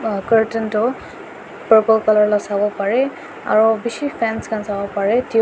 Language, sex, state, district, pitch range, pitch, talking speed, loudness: Nagamese, male, Nagaland, Dimapur, 210-225 Hz, 220 Hz, 145 wpm, -17 LUFS